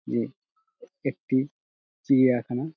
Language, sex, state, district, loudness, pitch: Bengali, male, West Bengal, Dakshin Dinajpur, -26 LUFS, 135 Hz